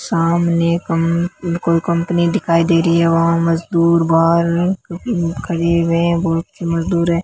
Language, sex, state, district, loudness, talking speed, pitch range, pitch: Hindi, female, Rajasthan, Bikaner, -16 LUFS, 155 wpm, 165-170 Hz, 170 Hz